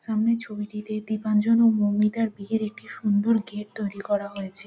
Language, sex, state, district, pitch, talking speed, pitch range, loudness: Bengali, female, West Bengal, Jhargram, 210 Hz, 165 wpm, 205-220 Hz, -25 LUFS